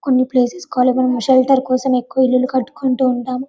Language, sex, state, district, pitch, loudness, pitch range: Telugu, female, Telangana, Karimnagar, 255 Hz, -16 LUFS, 250-260 Hz